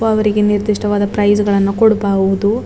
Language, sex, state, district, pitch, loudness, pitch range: Kannada, female, Karnataka, Dakshina Kannada, 210 Hz, -14 LUFS, 200-215 Hz